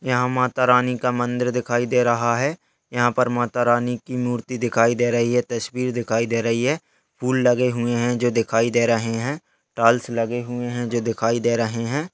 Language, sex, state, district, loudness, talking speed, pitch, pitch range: Hindi, male, Chhattisgarh, Jashpur, -21 LUFS, 215 wpm, 120 Hz, 120-125 Hz